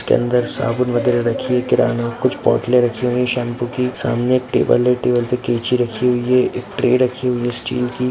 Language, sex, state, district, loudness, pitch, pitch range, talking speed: Hindi, male, Bihar, Gopalganj, -18 LUFS, 125 Hz, 120-125 Hz, 230 wpm